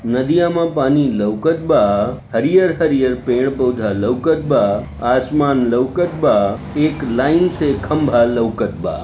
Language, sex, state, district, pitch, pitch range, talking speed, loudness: Bhojpuri, male, Bihar, Gopalganj, 135 Hz, 120-155 Hz, 120 wpm, -16 LUFS